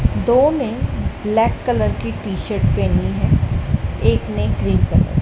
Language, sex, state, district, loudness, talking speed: Hindi, male, Madhya Pradesh, Dhar, -18 LUFS, 150 wpm